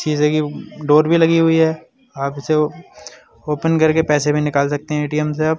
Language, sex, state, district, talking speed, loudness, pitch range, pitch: Bundeli, male, Uttar Pradesh, Budaun, 215 wpm, -17 LUFS, 150-160 Hz, 150 Hz